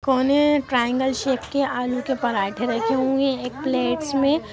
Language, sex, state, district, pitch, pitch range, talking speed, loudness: Hindi, female, Chhattisgarh, Kabirdham, 265 Hz, 245-275 Hz, 160 wpm, -22 LUFS